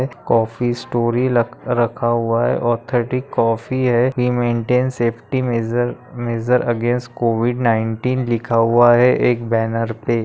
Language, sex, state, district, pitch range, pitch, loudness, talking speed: Hindi, male, Maharashtra, Nagpur, 115-125 Hz, 120 Hz, -18 LUFS, 130 wpm